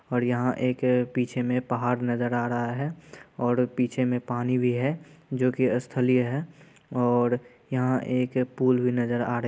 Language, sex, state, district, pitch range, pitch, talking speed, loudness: Hindi, male, Bihar, Purnia, 120-130 Hz, 125 Hz, 170 wpm, -26 LUFS